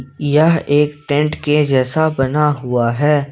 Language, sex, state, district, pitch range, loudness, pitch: Hindi, male, Jharkhand, Ranchi, 135-150 Hz, -15 LUFS, 145 Hz